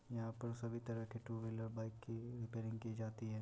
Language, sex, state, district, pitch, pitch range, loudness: Hindi, male, Bihar, Muzaffarpur, 115 Hz, 110-115 Hz, -47 LUFS